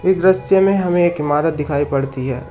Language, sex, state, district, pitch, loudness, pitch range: Hindi, male, Uttar Pradesh, Shamli, 160 Hz, -16 LUFS, 140-190 Hz